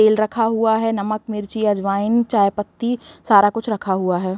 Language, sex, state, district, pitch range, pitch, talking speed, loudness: Hindi, female, Uttar Pradesh, Varanasi, 200-225 Hz, 215 Hz, 190 wpm, -19 LUFS